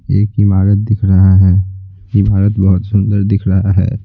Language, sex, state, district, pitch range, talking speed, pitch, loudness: Hindi, male, Bihar, Patna, 95-105 Hz, 165 wpm, 100 Hz, -12 LUFS